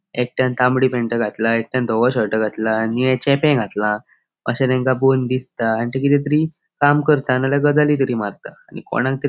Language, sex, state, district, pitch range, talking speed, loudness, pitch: Konkani, male, Goa, North and South Goa, 115-140 Hz, 185 wpm, -18 LUFS, 130 Hz